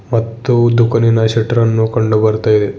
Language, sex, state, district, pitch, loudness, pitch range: Kannada, male, Karnataka, Bidar, 115 Hz, -13 LUFS, 110-115 Hz